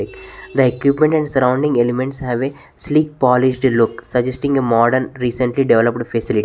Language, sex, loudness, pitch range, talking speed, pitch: English, male, -16 LUFS, 120-140 Hz, 160 wpm, 130 Hz